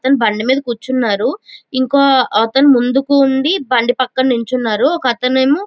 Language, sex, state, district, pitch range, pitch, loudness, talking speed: Telugu, female, Andhra Pradesh, Chittoor, 245-275 Hz, 260 Hz, -14 LUFS, 150 wpm